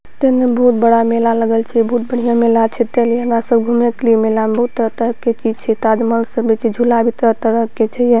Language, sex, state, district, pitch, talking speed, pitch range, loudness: Maithili, female, Bihar, Purnia, 230 Hz, 250 wpm, 225-240 Hz, -14 LUFS